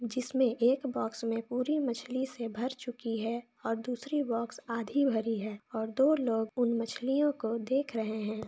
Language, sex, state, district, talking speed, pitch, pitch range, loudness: Hindi, female, Jharkhand, Sahebganj, 185 wpm, 235 Hz, 225-260 Hz, -32 LUFS